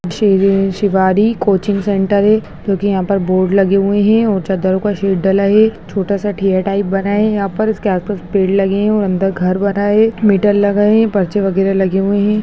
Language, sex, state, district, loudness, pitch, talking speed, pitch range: Hindi, female, Bihar, Muzaffarpur, -14 LUFS, 200 Hz, 210 wpm, 195-205 Hz